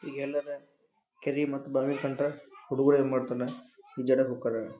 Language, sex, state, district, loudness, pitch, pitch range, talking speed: Kannada, male, Karnataka, Dharwad, -30 LUFS, 140 Hz, 130-145 Hz, 115 wpm